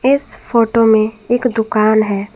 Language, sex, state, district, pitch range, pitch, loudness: Hindi, female, Jharkhand, Garhwa, 215-245 Hz, 220 Hz, -14 LUFS